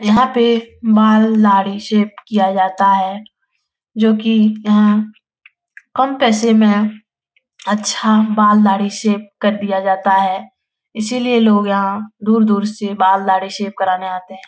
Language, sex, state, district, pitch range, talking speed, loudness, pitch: Hindi, female, Bihar, Jahanabad, 195-220 Hz, 145 wpm, -14 LUFS, 210 Hz